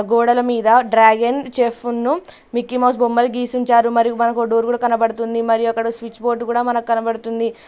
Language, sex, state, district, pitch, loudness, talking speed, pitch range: Telugu, female, Telangana, Mahabubabad, 235 Hz, -17 LUFS, 140 wpm, 230-240 Hz